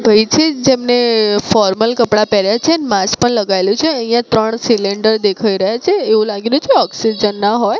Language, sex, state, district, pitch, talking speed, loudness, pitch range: Gujarati, female, Gujarat, Gandhinagar, 220 Hz, 160 wpm, -13 LUFS, 210-245 Hz